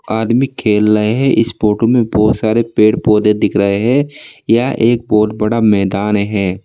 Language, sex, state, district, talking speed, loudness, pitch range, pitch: Hindi, male, Uttar Pradesh, Saharanpur, 180 wpm, -13 LUFS, 105-115 Hz, 110 Hz